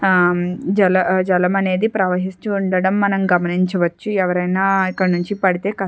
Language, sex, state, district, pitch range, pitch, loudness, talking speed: Telugu, female, Andhra Pradesh, Chittoor, 180-195 Hz, 185 Hz, -17 LUFS, 110 wpm